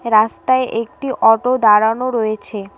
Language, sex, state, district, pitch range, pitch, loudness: Bengali, female, West Bengal, Cooch Behar, 215-250 Hz, 225 Hz, -15 LUFS